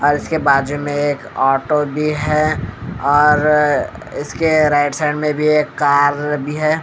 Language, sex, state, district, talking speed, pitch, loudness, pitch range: Hindi, male, Bihar, Katihar, 160 wpm, 150 Hz, -16 LUFS, 145-150 Hz